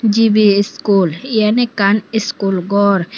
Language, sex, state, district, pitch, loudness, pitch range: Chakma, female, Tripura, Unakoti, 205 Hz, -14 LUFS, 200-220 Hz